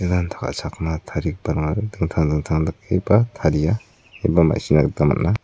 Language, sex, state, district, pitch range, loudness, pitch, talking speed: Garo, male, Meghalaya, South Garo Hills, 80-105 Hz, -21 LUFS, 85 Hz, 120 wpm